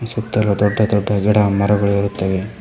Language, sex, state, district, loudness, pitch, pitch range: Kannada, male, Karnataka, Koppal, -17 LUFS, 100 Hz, 100-105 Hz